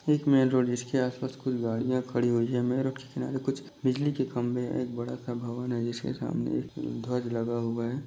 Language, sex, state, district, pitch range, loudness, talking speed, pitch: Hindi, male, Chhattisgarh, Bastar, 120-130 Hz, -30 LUFS, 215 wpm, 125 Hz